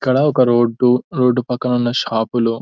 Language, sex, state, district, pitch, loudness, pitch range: Telugu, male, Telangana, Nalgonda, 125 Hz, -16 LUFS, 120-125 Hz